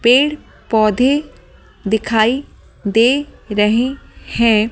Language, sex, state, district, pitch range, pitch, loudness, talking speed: Hindi, female, Delhi, New Delhi, 220-265 Hz, 235 Hz, -16 LUFS, 65 wpm